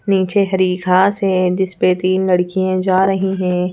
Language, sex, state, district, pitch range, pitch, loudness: Hindi, female, Madhya Pradesh, Bhopal, 185-190 Hz, 185 Hz, -16 LUFS